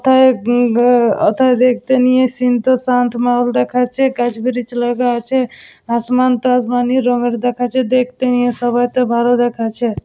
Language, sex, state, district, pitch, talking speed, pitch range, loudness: Bengali, female, West Bengal, Dakshin Dinajpur, 245 Hz, 155 wpm, 240-255 Hz, -14 LUFS